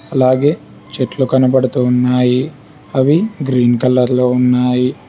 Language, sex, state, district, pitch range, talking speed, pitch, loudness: Telugu, male, Telangana, Hyderabad, 125-135 Hz, 105 wpm, 130 Hz, -14 LUFS